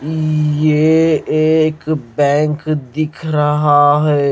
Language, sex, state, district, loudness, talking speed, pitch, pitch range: Hindi, male, Maharashtra, Gondia, -14 LUFS, 85 wpm, 150 Hz, 150-155 Hz